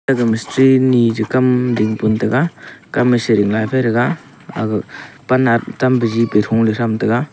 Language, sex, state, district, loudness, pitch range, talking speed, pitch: Wancho, male, Arunachal Pradesh, Longding, -15 LUFS, 110-130 Hz, 165 wpm, 115 Hz